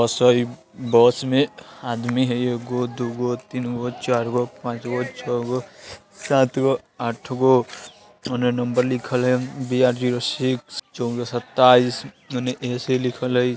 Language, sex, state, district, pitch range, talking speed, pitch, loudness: Bajjika, male, Bihar, Vaishali, 120-130 Hz, 145 wpm, 125 Hz, -22 LUFS